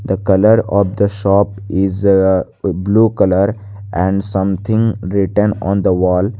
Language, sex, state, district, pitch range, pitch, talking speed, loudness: English, male, Jharkhand, Garhwa, 95-100 Hz, 100 Hz, 140 wpm, -14 LUFS